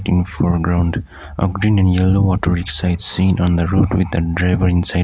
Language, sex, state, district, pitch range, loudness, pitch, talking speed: English, male, Sikkim, Gangtok, 85-95 Hz, -16 LUFS, 90 Hz, 205 wpm